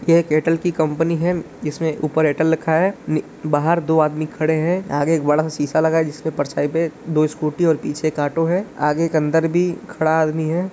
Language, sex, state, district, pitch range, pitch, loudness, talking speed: Hindi, male, Uttar Pradesh, Gorakhpur, 155-165 Hz, 160 Hz, -19 LUFS, 220 wpm